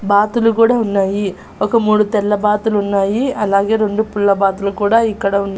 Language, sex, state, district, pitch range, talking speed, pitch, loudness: Telugu, female, Andhra Pradesh, Annamaya, 200-220 Hz, 150 wpm, 205 Hz, -15 LUFS